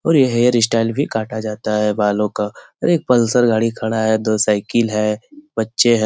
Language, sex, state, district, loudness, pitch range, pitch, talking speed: Hindi, male, Bihar, Lakhisarai, -17 LUFS, 105-120 Hz, 110 Hz, 210 wpm